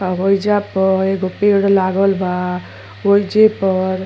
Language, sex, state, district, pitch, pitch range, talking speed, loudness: Bhojpuri, female, Uttar Pradesh, Ghazipur, 195 Hz, 185-200 Hz, 150 wpm, -15 LUFS